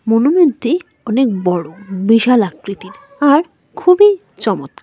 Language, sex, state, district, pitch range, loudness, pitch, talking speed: Bengali, female, West Bengal, Cooch Behar, 200-325 Hz, -14 LUFS, 245 Hz, 100 wpm